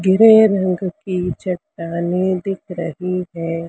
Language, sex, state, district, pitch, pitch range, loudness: Hindi, female, Maharashtra, Mumbai Suburban, 180 Hz, 170-190 Hz, -18 LUFS